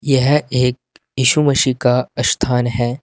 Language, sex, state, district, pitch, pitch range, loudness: Hindi, male, Uttar Pradesh, Saharanpur, 125 Hz, 125-135 Hz, -16 LUFS